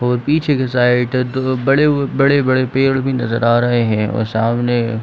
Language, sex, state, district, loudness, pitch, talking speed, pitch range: Hindi, male, Jharkhand, Sahebganj, -15 LUFS, 125 Hz, 215 wpm, 120-135 Hz